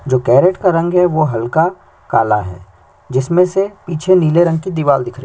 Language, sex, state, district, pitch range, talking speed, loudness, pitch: Hindi, male, Chhattisgarh, Sukma, 125-180 Hz, 205 wpm, -14 LUFS, 160 Hz